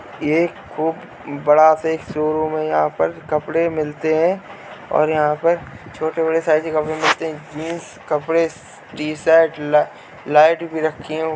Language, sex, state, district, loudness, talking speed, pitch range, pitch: Hindi, male, Uttar Pradesh, Jalaun, -19 LUFS, 140 wpm, 150-165 Hz, 155 Hz